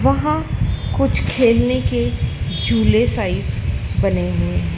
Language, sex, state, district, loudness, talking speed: Hindi, female, Madhya Pradesh, Dhar, -18 LUFS, 100 wpm